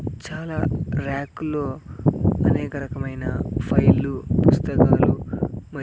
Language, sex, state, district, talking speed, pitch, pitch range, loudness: Telugu, male, Andhra Pradesh, Sri Satya Sai, 90 wpm, 140 Hz, 130-150 Hz, -22 LUFS